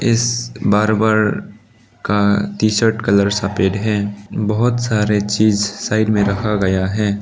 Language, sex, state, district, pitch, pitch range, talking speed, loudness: Hindi, male, Arunachal Pradesh, Lower Dibang Valley, 105 Hz, 100-110 Hz, 135 wpm, -17 LUFS